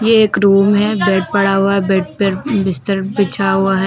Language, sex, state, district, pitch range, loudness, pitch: Hindi, female, Uttar Pradesh, Lucknow, 190-200 Hz, -14 LUFS, 195 Hz